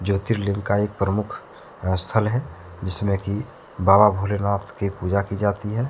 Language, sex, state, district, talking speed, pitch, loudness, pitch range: Hindi, male, Jharkhand, Deoghar, 155 wpm, 100 Hz, -22 LUFS, 95-105 Hz